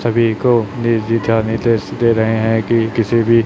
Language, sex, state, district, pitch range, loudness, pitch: Hindi, male, Chhattisgarh, Raipur, 110-115 Hz, -15 LUFS, 115 Hz